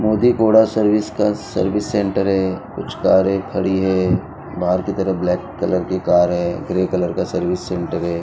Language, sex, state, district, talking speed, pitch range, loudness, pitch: Hindi, male, Maharashtra, Mumbai Suburban, 180 wpm, 90-105 Hz, -18 LUFS, 95 Hz